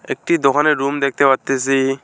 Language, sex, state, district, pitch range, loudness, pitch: Bengali, male, West Bengal, Alipurduar, 135-145 Hz, -16 LUFS, 135 Hz